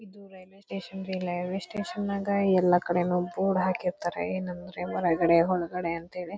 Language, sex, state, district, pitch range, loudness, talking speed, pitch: Kannada, female, Karnataka, Dharwad, 175-195 Hz, -28 LUFS, 150 wpm, 185 Hz